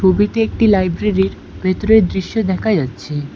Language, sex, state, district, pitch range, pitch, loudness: Bengali, female, West Bengal, Alipurduar, 185-215 Hz, 190 Hz, -16 LUFS